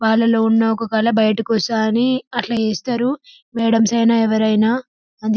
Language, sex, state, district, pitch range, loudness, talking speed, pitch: Telugu, female, Telangana, Karimnagar, 220-235 Hz, -17 LUFS, 155 wpm, 225 Hz